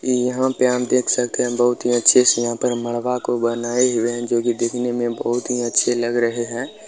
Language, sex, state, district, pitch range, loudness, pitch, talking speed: Hindi, male, Bihar, Bhagalpur, 120-125 Hz, -19 LUFS, 120 Hz, 235 wpm